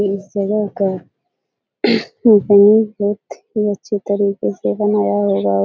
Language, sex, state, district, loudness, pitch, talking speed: Hindi, female, Bihar, Jahanabad, -16 LUFS, 200 Hz, 125 wpm